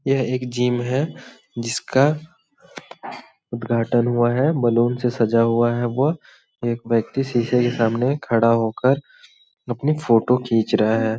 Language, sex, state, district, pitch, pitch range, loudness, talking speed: Hindi, male, Chhattisgarh, Balrampur, 120 Hz, 115-130 Hz, -20 LUFS, 145 wpm